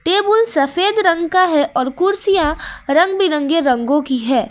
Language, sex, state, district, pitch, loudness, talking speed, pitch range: Hindi, female, Jharkhand, Ranchi, 330 Hz, -15 LUFS, 160 wpm, 280-385 Hz